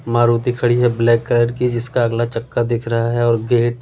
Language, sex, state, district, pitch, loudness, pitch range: Hindi, male, Delhi, New Delhi, 120 Hz, -17 LUFS, 115-120 Hz